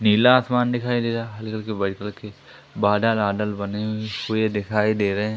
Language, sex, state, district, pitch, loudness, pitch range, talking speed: Hindi, male, Madhya Pradesh, Umaria, 110 Hz, -22 LUFS, 105-115 Hz, 190 wpm